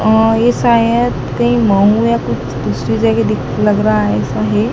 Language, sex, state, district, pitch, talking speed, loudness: Hindi, male, Madhya Pradesh, Dhar, 125 Hz, 190 wpm, -13 LUFS